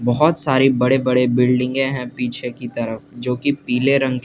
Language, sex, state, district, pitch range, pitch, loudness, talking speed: Hindi, male, Jharkhand, Garhwa, 125-135 Hz, 125 Hz, -18 LUFS, 210 wpm